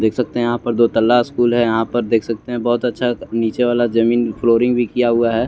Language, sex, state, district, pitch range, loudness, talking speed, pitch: Hindi, male, Chandigarh, Chandigarh, 115-120 Hz, -17 LUFS, 230 wpm, 120 Hz